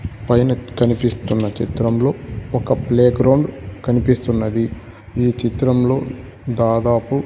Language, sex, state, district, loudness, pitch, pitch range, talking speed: Telugu, male, Andhra Pradesh, Sri Satya Sai, -18 LUFS, 120 Hz, 115-125 Hz, 85 wpm